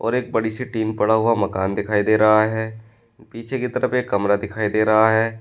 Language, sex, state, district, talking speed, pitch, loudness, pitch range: Hindi, male, Uttar Pradesh, Shamli, 230 wpm, 110 Hz, -19 LUFS, 110-115 Hz